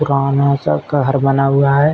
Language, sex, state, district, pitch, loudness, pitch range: Hindi, male, Uttar Pradesh, Ghazipur, 140 Hz, -15 LUFS, 135-140 Hz